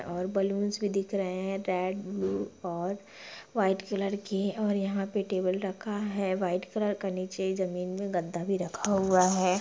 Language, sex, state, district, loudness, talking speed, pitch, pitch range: Hindi, female, Bihar, Gaya, -31 LUFS, 180 wpm, 195 Hz, 185-200 Hz